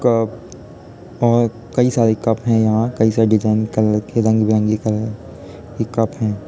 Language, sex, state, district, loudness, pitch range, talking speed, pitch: Hindi, male, Uttar Pradesh, Varanasi, -17 LUFS, 110-115 Hz, 155 wpm, 110 Hz